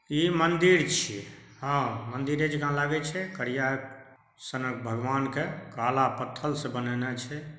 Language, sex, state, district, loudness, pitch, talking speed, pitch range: Maithili, male, Bihar, Saharsa, -28 LUFS, 135 Hz, 135 wpm, 130-150 Hz